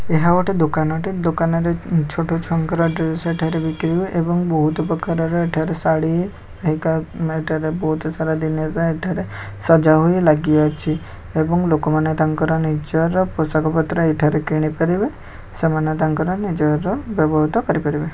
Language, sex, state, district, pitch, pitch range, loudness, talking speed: Odia, male, Odisha, Khordha, 160 Hz, 155-170 Hz, -19 LUFS, 105 wpm